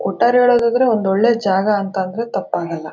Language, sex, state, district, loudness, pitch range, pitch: Kannada, female, Karnataka, Mysore, -16 LUFS, 190-235 Hz, 215 Hz